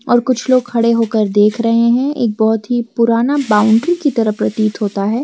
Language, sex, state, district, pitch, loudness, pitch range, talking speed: Hindi, female, Jharkhand, Garhwa, 230 Hz, -14 LUFS, 220-245 Hz, 205 wpm